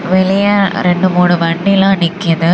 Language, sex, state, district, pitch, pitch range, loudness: Tamil, female, Tamil Nadu, Namakkal, 185 Hz, 175-195 Hz, -12 LUFS